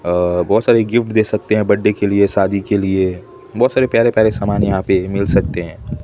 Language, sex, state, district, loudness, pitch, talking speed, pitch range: Hindi, male, Odisha, Khordha, -15 LUFS, 100 Hz, 230 wpm, 95-110 Hz